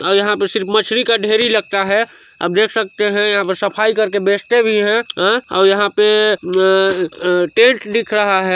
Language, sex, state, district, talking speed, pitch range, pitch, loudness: Hindi, male, Chhattisgarh, Sarguja, 205 wpm, 195-220 Hz, 205 Hz, -14 LUFS